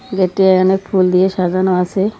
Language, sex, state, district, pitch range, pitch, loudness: Bengali, female, West Bengal, Cooch Behar, 185-190 Hz, 190 Hz, -14 LUFS